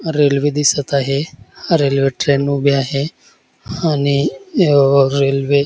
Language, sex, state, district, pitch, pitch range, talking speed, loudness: Marathi, male, Maharashtra, Dhule, 140 Hz, 135-145 Hz, 105 wpm, -15 LUFS